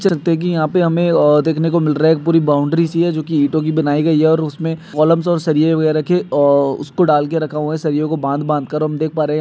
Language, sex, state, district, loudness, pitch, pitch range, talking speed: Hindi, male, Maharashtra, Dhule, -15 LUFS, 155 Hz, 150-165 Hz, 270 wpm